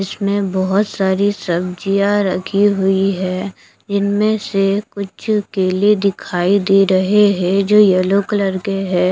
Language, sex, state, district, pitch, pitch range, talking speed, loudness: Hindi, female, Bihar, Katihar, 195 Hz, 185-200 Hz, 140 wpm, -16 LUFS